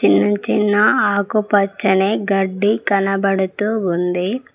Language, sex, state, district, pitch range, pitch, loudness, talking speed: Telugu, female, Telangana, Mahabubabad, 190-210 Hz, 200 Hz, -17 LUFS, 65 wpm